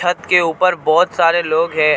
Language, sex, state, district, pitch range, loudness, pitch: Hindi, male, Jharkhand, Ranchi, 160-175 Hz, -15 LUFS, 170 Hz